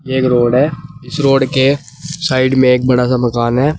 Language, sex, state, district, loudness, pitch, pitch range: Hindi, male, Uttar Pradesh, Saharanpur, -13 LUFS, 130 Hz, 125-145 Hz